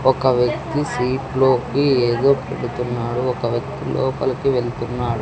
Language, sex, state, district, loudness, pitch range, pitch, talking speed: Telugu, male, Andhra Pradesh, Sri Satya Sai, -20 LUFS, 120-130 Hz, 125 Hz, 105 wpm